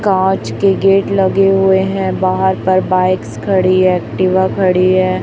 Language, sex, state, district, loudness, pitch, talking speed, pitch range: Hindi, female, Chhattisgarh, Raipur, -13 LUFS, 190 Hz, 150 wpm, 185-195 Hz